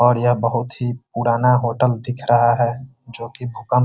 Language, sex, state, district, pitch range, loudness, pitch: Hindi, male, Bihar, Muzaffarpur, 120-125 Hz, -19 LUFS, 120 Hz